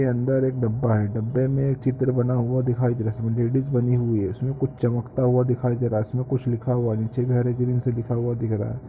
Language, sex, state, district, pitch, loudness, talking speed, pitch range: Hindi, male, Uttarakhand, Tehri Garhwal, 125 Hz, -23 LUFS, 285 wpm, 115-130 Hz